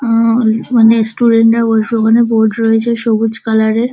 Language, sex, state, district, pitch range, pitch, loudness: Bengali, female, West Bengal, Dakshin Dinajpur, 225-230 Hz, 225 Hz, -11 LUFS